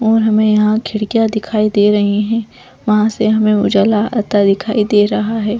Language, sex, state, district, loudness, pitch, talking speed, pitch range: Hindi, female, Chhattisgarh, Bastar, -14 LUFS, 215 Hz, 180 wpm, 210-220 Hz